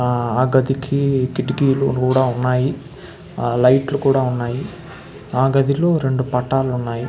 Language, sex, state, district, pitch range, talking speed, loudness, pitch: Telugu, male, Andhra Pradesh, Krishna, 125-135 Hz, 120 wpm, -18 LUFS, 130 Hz